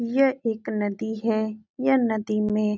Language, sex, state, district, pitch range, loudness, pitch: Hindi, female, Uttar Pradesh, Etah, 215-235 Hz, -25 LUFS, 220 Hz